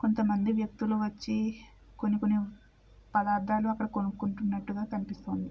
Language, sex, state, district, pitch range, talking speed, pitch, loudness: Telugu, female, Andhra Pradesh, Krishna, 205-220 Hz, 110 wpm, 210 Hz, -31 LUFS